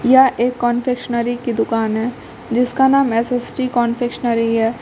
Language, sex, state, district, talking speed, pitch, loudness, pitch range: Hindi, female, Uttar Pradesh, Lucknow, 135 wpm, 240 Hz, -17 LUFS, 230-250 Hz